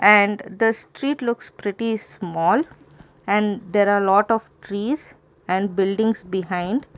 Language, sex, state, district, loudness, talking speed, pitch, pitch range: English, female, Karnataka, Bangalore, -21 LUFS, 135 wpm, 205 Hz, 200-225 Hz